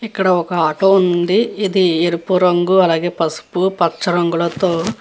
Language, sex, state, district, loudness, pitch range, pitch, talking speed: Telugu, female, Andhra Pradesh, Guntur, -15 LUFS, 170-190 Hz, 180 Hz, 145 wpm